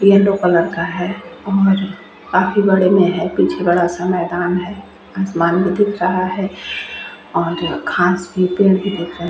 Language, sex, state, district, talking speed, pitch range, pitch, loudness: Hindi, female, Bihar, Vaishali, 175 wpm, 175-195 Hz, 185 Hz, -16 LUFS